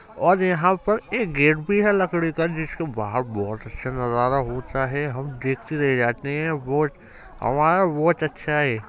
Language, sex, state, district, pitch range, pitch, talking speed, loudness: Hindi, male, Uttar Pradesh, Jyotiba Phule Nagar, 130-170 Hz, 150 Hz, 175 wpm, -22 LUFS